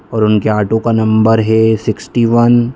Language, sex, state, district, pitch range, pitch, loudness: Hindi, male, Bihar, Muzaffarpur, 110-115 Hz, 110 Hz, -12 LUFS